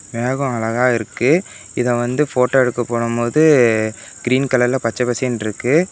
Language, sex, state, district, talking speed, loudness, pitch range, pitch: Tamil, male, Tamil Nadu, Namakkal, 130 wpm, -17 LUFS, 115-130 Hz, 125 Hz